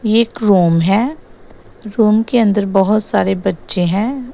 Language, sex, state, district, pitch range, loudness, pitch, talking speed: Hindi, female, Assam, Sonitpur, 180-225 Hz, -14 LUFS, 210 Hz, 140 wpm